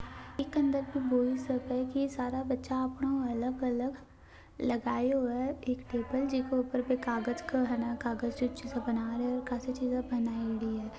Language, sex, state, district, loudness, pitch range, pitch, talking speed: Hindi, female, Rajasthan, Nagaur, -33 LUFS, 245-265 Hz, 255 Hz, 160 wpm